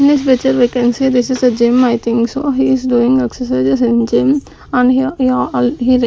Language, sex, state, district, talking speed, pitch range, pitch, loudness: English, female, Chandigarh, Chandigarh, 215 wpm, 240-265 Hz, 250 Hz, -13 LUFS